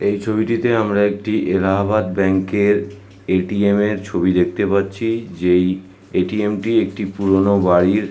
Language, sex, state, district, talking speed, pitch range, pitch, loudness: Bengali, male, West Bengal, North 24 Parganas, 135 wpm, 95-105 Hz, 100 Hz, -18 LUFS